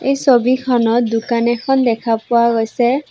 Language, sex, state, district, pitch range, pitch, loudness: Assamese, female, Assam, Sonitpur, 230-255 Hz, 240 Hz, -15 LUFS